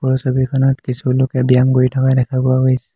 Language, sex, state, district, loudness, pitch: Assamese, male, Assam, Hailakandi, -15 LUFS, 130 Hz